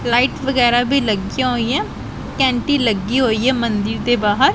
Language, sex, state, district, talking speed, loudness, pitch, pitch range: Punjabi, female, Punjab, Pathankot, 145 wpm, -17 LUFS, 240 Hz, 225-260 Hz